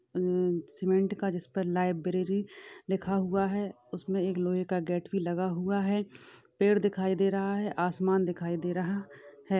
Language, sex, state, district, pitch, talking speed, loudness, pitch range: Hindi, female, Uttar Pradesh, Jalaun, 190 Hz, 195 wpm, -30 LUFS, 180-195 Hz